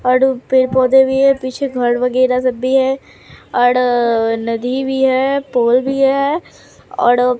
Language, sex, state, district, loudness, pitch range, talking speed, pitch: Hindi, male, Bihar, Katihar, -15 LUFS, 245-265 Hz, 170 wpm, 255 Hz